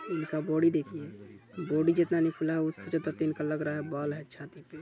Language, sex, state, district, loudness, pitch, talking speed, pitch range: Hindi, male, Chhattisgarh, Balrampur, -30 LUFS, 155 Hz, 225 wpm, 150-165 Hz